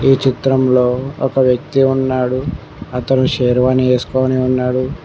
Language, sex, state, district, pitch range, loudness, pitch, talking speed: Telugu, male, Telangana, Mahabubabad, 125-135 Hz, -15 LUFS, 130 Hz, 105 wpm